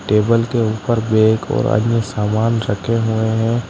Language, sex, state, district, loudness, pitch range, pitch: Hindi, male, Uttar Pradesh, Lalitpur, -17 LUFS, 110-115 Hz, 110 Hz